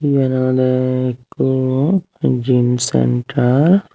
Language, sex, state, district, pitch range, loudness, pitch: Chakma, male, Tripura, Unakoti, 125-140 Hz, -16 LUFS, 130 Hz